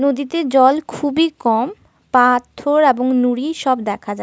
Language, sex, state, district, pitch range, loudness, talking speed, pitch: Bengali, female, Jharkhand, Sahebganj, 245-290 Hz, -16 LUFS, 140 wpm, 260 Hz